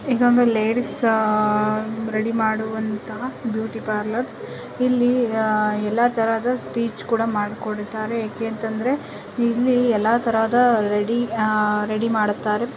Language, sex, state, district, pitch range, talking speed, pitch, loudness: Kannada, female, Karnataka, Mysore, 215-235 Hz, 115 wpm, 225 Hz, -21 LUFS